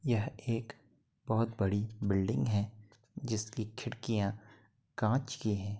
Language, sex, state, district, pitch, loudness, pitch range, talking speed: Hindi, male, Uttar Pradesh, Gorakhpur, 110 Hz, -35 LUFS, 105-120 Hz, 105 wpm